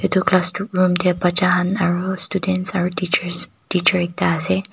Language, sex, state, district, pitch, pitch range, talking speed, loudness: Nagamese, female, Nagaland, Kohima, 180 Hz, 180-185 Hz, 150 wpm, -18 LUFS